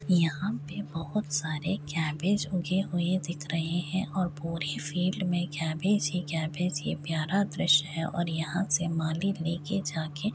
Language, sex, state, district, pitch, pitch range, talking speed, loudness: Hindi, female, Uttar Pradesh, Hamirpur, 170 Hz, 160-185 Hz, 170 wpm, -30 LUFS